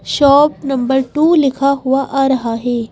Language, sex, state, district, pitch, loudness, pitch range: Hindi, female, Madhya Pradesh, Bhopal, 270 Hz, -14 LUFS, 260-280 Hz